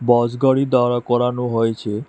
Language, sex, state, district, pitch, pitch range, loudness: Bengali, male, Tripura, West Tripura, 120 Hz, 120-125 Hz, -18 LUFS